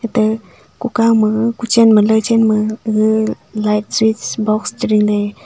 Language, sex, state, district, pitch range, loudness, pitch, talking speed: Wancho, female, Arunachal Pradesh, Longding, 215-225 Hz, -14 LUFS, 220 Hz, 175 wpm